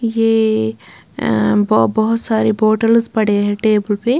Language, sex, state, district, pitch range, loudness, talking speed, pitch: Hindi, female, Bihar, Patna, 205-225 Hz, -15 LUFS, 155 wpm, 220 Hz